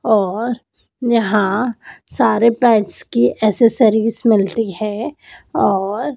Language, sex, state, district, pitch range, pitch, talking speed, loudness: Hindi, female, Madhya Pradesh, Dhar, 205-235 Hz, 220 Hz, 85 wpm, -16 LUFS